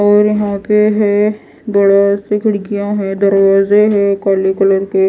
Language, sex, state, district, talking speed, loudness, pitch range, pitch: Hindi, female, Odisha, Malkangiri, 155 wpm, -12 LUFS, 195-210 Hz, 200 Hz